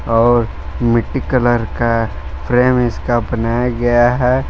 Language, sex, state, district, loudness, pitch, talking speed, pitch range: Hindi, male, Jharkhand, Palamu, -15 LUFS, 120 Hz, 120 wpm, 115-125 Hz